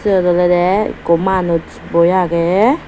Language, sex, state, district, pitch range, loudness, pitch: Chakma, female, Tripura, Dhalai, 170-190 Hz, -14 LUFS, 180 Hz